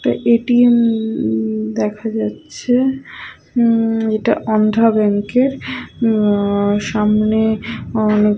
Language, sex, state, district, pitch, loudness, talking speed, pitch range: Bengali, female, West Bengal, Purulia, 220 Hz, -16 LUFS, 85 wpm, 210-230 Hz